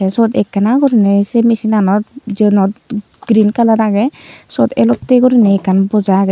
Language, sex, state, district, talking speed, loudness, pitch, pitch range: Chakma, female, Tripura, Unakoti, 160 wpm, -12 LUFS, 210 Hz, 200-230 Hz